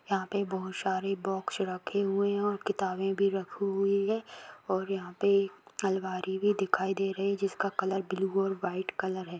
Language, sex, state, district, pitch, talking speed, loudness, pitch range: Hindi, female, Jharkhand, Sahebganj, 195 Hz, 190 wpm, -31 LUFS, 190-200 Hz